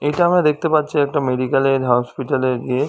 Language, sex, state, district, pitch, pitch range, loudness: Bengali, male, West Bengal, Dakshin Dinajpur, 135 Hz, 130-150 Hz, -18 LUFS